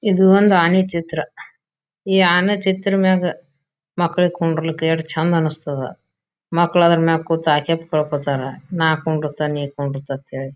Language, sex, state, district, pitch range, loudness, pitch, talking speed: Kannada, female, Karnataka, Bijapur, 150-175 Hz, -18 LUFS, 160 Hz, 130 wpm